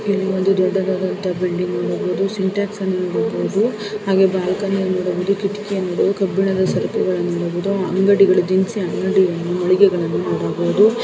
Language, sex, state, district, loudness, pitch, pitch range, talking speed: Kannada, female, Karnataka, Dharwad, -18 LUFS, 190 Hz, 180-195 Hz, 120 wpm